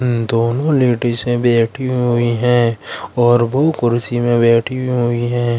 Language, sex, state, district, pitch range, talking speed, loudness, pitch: Hindi, male, Madhya Pradesh, Katni, 120-125 Hz, 130 wpm, -15 LUFS, 120 Hz